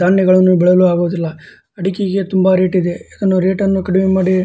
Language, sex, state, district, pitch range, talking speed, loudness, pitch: Kannada, male, Karnataka, Dharwad, 180-190 Hz, 150 wpm, -14 LUFS, 185 Hz